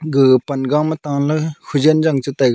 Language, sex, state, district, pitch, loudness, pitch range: Wancho, male, Arunachal Pradesh, Longding, 145 Hz, -16 LUFS, 140-155 Hz